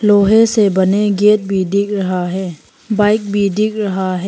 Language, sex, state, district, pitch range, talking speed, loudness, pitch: Hindi, female, Arunachal Pradesh, Papum Pare, 190-210 Hz, 180 wpm, -14 LUFS, 200 Hz